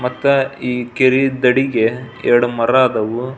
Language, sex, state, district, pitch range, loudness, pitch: Kannada, male, Karnataka, Belgaum, 120-130 Hz, -16 LUFS, 125 Hz